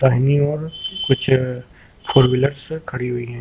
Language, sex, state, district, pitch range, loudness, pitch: Hindi, male, Uttar Pradesh, Lucknow, 125-145 Hz, -19 LUFS, 135 Hz